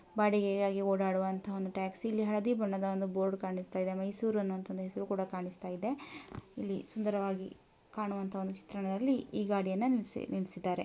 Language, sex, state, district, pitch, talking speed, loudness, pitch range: Kannada, female, Karnataka, Mysore, 195 Hz, 120 wpm, -35 LUFS, 190-210 Hz